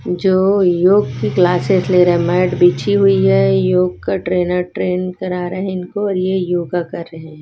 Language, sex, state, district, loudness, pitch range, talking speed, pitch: Hindi, female, Chhattisgarh, Raipur, -15 LUFS, 165-185 Hz, 200 wpm, 180 Hz